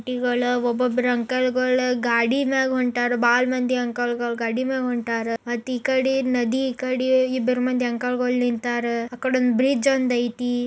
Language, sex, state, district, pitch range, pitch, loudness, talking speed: Kannada, female, Karnataka, Bijapur, 240-255 Hz, 250 Hz, -22 LUFS, 140 wpm